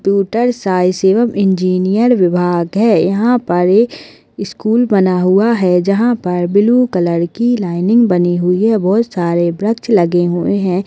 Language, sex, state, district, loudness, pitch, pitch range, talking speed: Hindi, female, Chhattisgarh, Kabirdham, -13 LUFS, 195 Hz, 180-225 Hz, 150 wpm